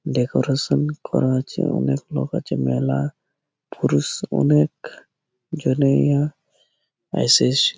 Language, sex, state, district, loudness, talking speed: Bengali, male, West Bengal, Malda, -20 LUFS, 85 wpm